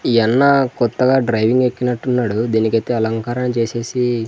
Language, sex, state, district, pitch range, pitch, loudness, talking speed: Telugu, male, Andhra Pradesh, Sri Satya Sai, 115-125 Hz, 120 Hz, -17 LUFS, 125 wpm